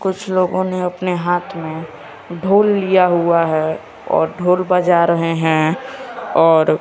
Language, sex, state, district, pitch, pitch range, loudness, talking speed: Hindi, male, Bihar, West Champaran, 180 Hz, 165-185 Hz, -16 LUFS, 140 wpm